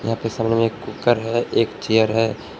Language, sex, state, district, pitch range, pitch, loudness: Hindi, male, Jharkhand, Palamu, 110-115 Hz, 115 Hz, -20 LUFS